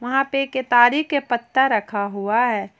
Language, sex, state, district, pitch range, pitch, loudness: Hindi, female, Jharkhand, Ranchi, 215-270 Hz, 245 Hz, -19 LUFS